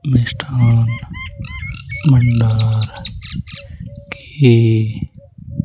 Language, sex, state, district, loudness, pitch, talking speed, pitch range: Hindi, male, Rajasthan, Jaipur, -15 LUFS, 115 Hz, 30 wpm, 110-125 Hz